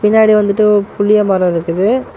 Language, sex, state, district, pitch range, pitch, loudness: Tamil, male, Tamil Nadu, Namakkal, 195-215 Hz, 205 Hz, -12 LUFS